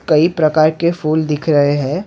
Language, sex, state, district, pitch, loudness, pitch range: Hindi, male, Maharashtra, Mumbai Suburban, 155 Hz, -14 LUFS, 150-165 Hz